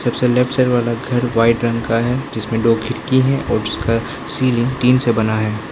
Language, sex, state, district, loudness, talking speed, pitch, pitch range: Hindi, male, Arunachal Pradesh, Lower Dibang Valley, -17 LUFS, 210 wpm, 120 Hz, 115-125 Hz